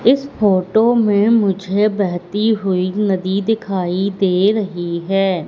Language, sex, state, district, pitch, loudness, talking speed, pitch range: Hindi, female, Madhya Pradesh, Katni, 200 Hz, -16 LUFS, 120 wpm, 185-215 Hz